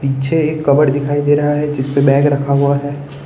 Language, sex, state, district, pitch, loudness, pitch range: Hindi, male, Gujarat, Valsad, 145 Hz, -14 LUFS, 140-145 Hz